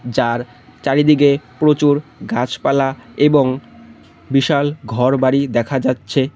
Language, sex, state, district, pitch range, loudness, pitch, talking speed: Bengali, male, West Bengal, Cooch Behar, 120-145 Hz, -16 LUFS, 135 Hz, 95 wpm